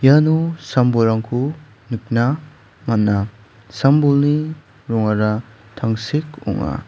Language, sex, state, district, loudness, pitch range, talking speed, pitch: Garo, male, Meghalaya, West Garo Hills, -18 LUFS, 110-145 Hz, 70 wpm, 120 Hz